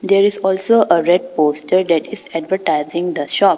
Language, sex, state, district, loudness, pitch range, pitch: English, female, Arunachal Pradesh, Papum Pare, -16 LUFS, 165-195 Hz, 180 Hz